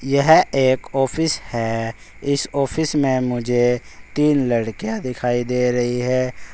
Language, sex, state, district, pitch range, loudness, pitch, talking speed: Hindi, male, Uttar Pradesh, Saharanpur, 120-140 Hz, -20 LUFS, 125 Hz, 130 wpm